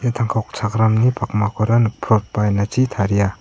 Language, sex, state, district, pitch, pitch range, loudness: Garo, male, Meghalaya, South Garo Hills, 110 Hz, 105-115 Hz, -18 LUFS